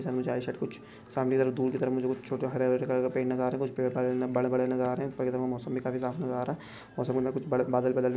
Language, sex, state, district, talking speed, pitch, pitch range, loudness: Hindi, male, Chhattisgarh, Sukma, 330 wpm, 130 Hz, 125-130 Hz, -30 LUFS